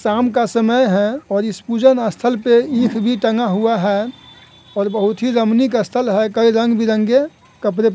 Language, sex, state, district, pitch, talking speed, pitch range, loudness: Hindi, male, Bihar, Sitamarhi, 230 Hz, 180 wpm, 215-245 Hz, -16 LUFS